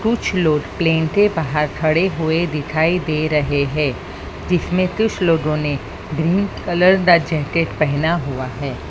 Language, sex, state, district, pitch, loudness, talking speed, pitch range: Hindi, female, Maharashtra, Mumbai Suburban, 160 Hz, -18 LUFS, 150 wpm, 150-175 Hz